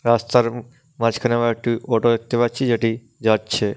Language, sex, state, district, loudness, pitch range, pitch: Bengali, male, West Bengal, Dakshin Dinajpur, -20 LUFS, 115-120 Hz, 115 Hz